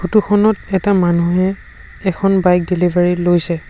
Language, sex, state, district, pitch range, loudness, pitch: Assamese, male, Assam, Sonitpur, 175-195 Hz, -15 LUFS, 185 Hz